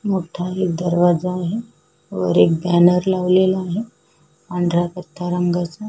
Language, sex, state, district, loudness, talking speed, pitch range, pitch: Marathi, female, Maharashtra, Sindhudurg, -19 LUFS, 130 wpm, 175-185 Hz, 180 Hz